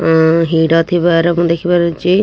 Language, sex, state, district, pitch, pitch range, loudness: Odia, female, Odisha, Nuapada, 170 Hz, 165-175 Hz, -12 LUFS